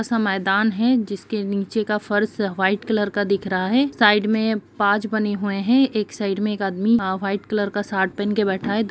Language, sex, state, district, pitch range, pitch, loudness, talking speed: Hindi, female, Chhattisgarh, Sukma, 200-220 Hz, 205 Hz, -21 LUFS, 230 wpm